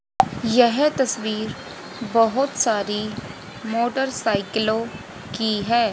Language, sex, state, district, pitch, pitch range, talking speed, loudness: Hindi, female, Haryana, Jhajjar, 225 Hz, 215-240 Hz, 70 wpm, -21 LUFS